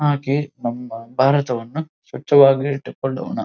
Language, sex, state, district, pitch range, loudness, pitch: Kannada, male, Karnataka, Dharwad, 125-145 Hz, -19 LUFS, 135 Hz